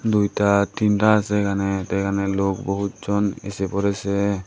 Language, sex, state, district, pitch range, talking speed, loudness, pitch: Bengali, male, Tripura, Dhalai, 100-105 Hz, 135 wpm, -21 LUFS, 100 Hz